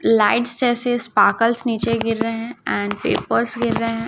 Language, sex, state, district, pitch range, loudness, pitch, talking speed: Hindi, female, Chhattisgarh, Raipur, 225-240 Hz, -19 LUFS, 230 Hz, 175 wpm